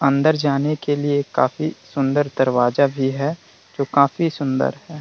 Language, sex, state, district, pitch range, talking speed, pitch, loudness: Hindi, male, Bihar, Vaishali, 135-150 Hz, 165 wpm, 140 Hz, -20 LUFS